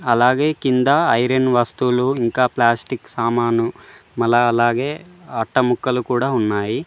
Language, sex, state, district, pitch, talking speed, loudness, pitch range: Telugu, male, Telangana, Mahabubabad, 125 Hz, 105 wpm, -18 LUFS, 120-130 Hz